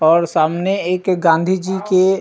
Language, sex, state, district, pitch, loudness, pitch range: Chhattisgarhi, male, Chhattisgarh, Rajnandgaon, 180 Hz, -16 LUFS, 170-190 Hz